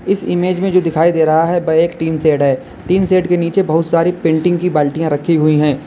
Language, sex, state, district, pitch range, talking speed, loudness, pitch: Hindi, male, Uttar Pradesh, Lalitpur, 155-180 Hz, 235 wpm, -14 LUFS, 165 Hz